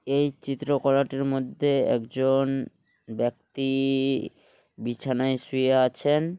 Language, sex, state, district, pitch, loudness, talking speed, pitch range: Bengali, male, West Bengal, Malda, 135 Hz, -25 LUFS, 95 wpm, 130-140 Hz